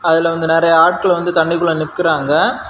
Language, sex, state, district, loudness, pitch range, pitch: Tamil, male, Tamil Nadu, Kanyakumari, -14 LUFS, 165-170 Hz, 165 Hz